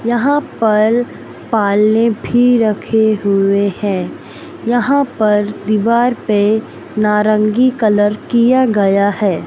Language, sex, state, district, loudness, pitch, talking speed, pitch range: Hindi, male, Madhya Pradesh, Katni, -14 LUFS, 215 Hz, 100 wpm, 205-240 Hz